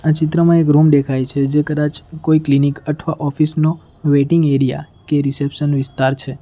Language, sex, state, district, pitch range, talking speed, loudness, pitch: Gujarati, male, Gujarat, Valsad, 140-155 Hz, 180 wpm, -16 LUFS, 145 Hz